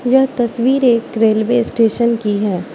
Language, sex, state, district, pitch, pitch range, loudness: Hindi, female, Manipur, Imphal West, 235 Hz, 220-245 Hz, -15 LUFS